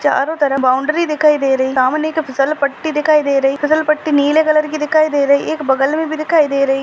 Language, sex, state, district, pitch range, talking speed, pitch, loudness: Hindi, female, Maharashtra, Dhule, 275-310 Hz, 245 wpm, 295 Hz, -15 LUFS